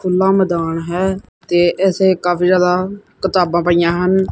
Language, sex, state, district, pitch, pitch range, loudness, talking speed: Punjabi, male, Punjab, Kapurthala, 180 Hz, 175-190 Hz, -15 LUFS, 140 wpm